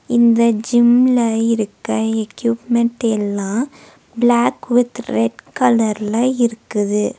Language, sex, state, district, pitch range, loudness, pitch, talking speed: Tamil, female, Tamil Nadu, Nilgiris, 220-240 Hz, -17 LUFS, 230 Hz, 85 wpm